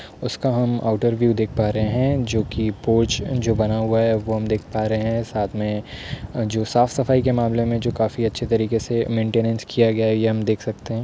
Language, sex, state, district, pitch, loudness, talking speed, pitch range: Hindi, male, Uttar Pradesh, Hamirpur, 115 Hz, -21 LUFS, 235 wpm, 110-120 Hz